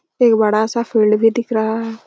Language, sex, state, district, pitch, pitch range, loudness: Hindi, female, Chhattisgarh, Raigarh, 225 Hz, 220-235 Hz, -16 LUFS